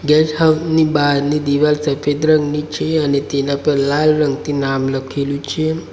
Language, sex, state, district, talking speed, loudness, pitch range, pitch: Gujarati, male, Gujarat, Valsad, 160 wpm, -16 LUFS, 140-155 Hz, 145 Hz